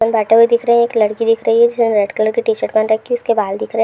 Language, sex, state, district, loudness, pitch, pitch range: Hindi, female, Uttar Pradesh, Deoria, -14 LUFS, 225 Hz, 220-235 Hz